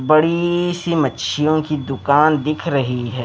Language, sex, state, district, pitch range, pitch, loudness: Hindi, male, Bihar, Patna, 135-160 Hz, 150 Hz, -18 LUFS